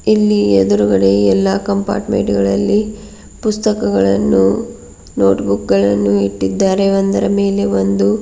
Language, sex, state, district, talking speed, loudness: Kannada, female, Karnataka, Bidar, 95 wpm, -14 LUFS